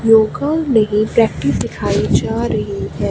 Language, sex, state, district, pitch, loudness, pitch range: Hindi, female, Haryana, Charkhi Dadri, 220 Hz, -16 LUFS, 175-230 Hz